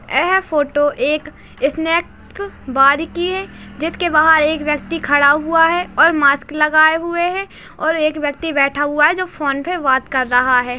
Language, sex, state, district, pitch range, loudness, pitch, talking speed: Hindi, female, Uttar Pradesh, Ghazipur, 285-330 Hz, -15 LUFS, 305 Hz, 185 wpm